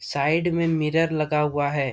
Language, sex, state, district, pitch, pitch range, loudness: Hindi, male, Bihar, Jamui, 155 Hz, 145-165 Hz, -23 LUFS